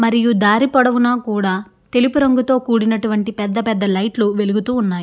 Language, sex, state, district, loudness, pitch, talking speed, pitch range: Telugu, female, Andhra Pradesh, Srikakulam, -16 LUFS, 225 Hz, 145 wpm, 210-245 Hz